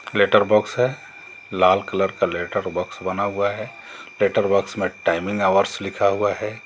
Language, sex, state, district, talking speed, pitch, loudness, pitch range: Hindi, male, Jharkhand, Garhwa, 170 wpm, 100 Hz, -21 LUFS, 100-105 Hz